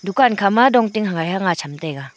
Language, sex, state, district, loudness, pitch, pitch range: Wancho, female, Arunachal Pradesh, Longding, -17 LUFS, 195 Hz, 165-220 Hz